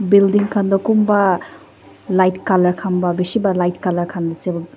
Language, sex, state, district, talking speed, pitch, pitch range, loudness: Nagamese, female, Nagaland, Dimapur, 165 wpm, 185 Hz, 180-200 Hz, -17 LUFS